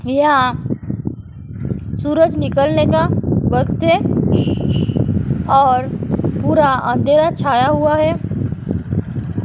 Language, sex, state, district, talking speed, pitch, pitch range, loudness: Hindi, female, Uttar Pradesh, Jyotiba Phule Nagar, 75 wpm, 295 Hz, 270-310 Hz, -16 LUFS